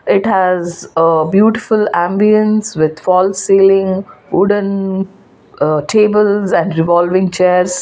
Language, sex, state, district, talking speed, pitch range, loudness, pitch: English, female, Gujarat, Valsad, 105 wpm, 175-205 Hz, -13 LUFS, 190 Hz